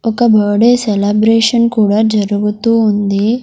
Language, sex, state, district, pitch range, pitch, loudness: Telugu, female, Andhra Pradesh, Sri Satya Sai, 205-230 Hz, 215 Hz, -12 LUFS